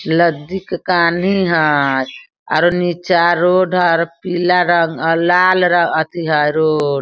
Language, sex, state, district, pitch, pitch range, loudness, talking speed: Hindi, female, Bihar, Sitamarhi, 170 Hz, 160-180 Hz, -14 LUFS, 155 wpm